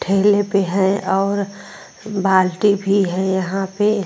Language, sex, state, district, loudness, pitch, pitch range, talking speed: Hindi, female, Uttar Pradesh, Muzaffarnagar, -18 LUFS, 195 Hz, 190-200 Hz, 145 wpm